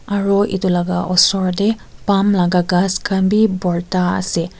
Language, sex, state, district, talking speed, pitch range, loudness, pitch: Nagamese, female, Nagaland, Kohima, 155 wpm, 180-200 Hz, -16 LUFS, 185 Hz